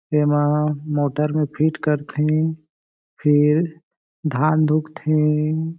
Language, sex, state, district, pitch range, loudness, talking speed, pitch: Chhattisgarhi, male, Chhattisgarh, Jashpur, 150-155 Hz, -20 LUFS, 85 wpm, 155 Hz